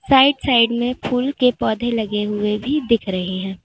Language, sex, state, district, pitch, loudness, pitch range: Hindi, female, Uttar Pradesh, Lalitpur, 235 Hz, -18 LUFS, 210-250 Hz